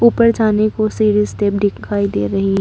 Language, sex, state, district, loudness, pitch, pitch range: Hindi, female, Arunachal Pradesh, Papum Pare, -16 LUFS, 210 Hz, 200-215 Hz